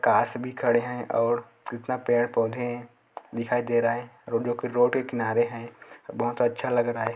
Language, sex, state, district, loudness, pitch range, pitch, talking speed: Hindi, male, Chhattisgarh, Korba, -26 LUFS, 115-120 Hz, 120 Hz, 175 wpm